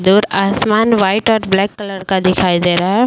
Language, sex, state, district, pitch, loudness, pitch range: Hindi, female, Uttar Pradesh, Jyotiba Phule Nagar, 195 Hz, -14 LUFS, 190-210 Hz